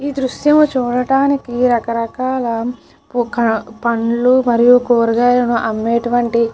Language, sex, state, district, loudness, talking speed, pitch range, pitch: Telugu, female, Andhra Pradesh, Krishna, -15 LUFS, 100 wpm, 230-255 Hz, 240 Hz